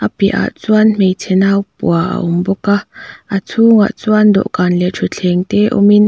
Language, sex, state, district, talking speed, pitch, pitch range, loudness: Mizo, female, Mizoram, Aizawl, 180 wpm, 200 Hz, 185-210 Hz, -13 LUFS